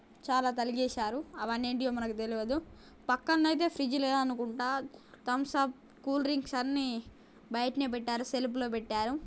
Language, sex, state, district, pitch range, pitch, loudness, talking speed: Telugu, female, Telangana, Karimnagar, 240-275 Hz, 255 Hz, -33 LUFS, 130 wpm